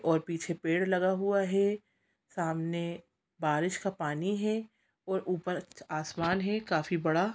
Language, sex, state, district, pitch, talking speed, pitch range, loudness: Hindi, female, Chhattisgarh, Sukma, 180 Hz, 140 wpm, 165-195 Hz, -32 LUFS